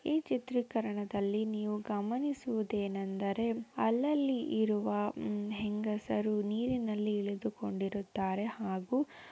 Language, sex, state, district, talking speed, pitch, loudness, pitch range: Kannada, female, Karnataka, Shimoga, 75 wpm, 210 Hz, -35 LUFS, 205-235 Hz